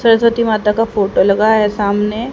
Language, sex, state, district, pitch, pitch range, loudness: Hindi, female, Haryana, Jhajjar, 215 Hz, 205-230 Hz, -14 LUFS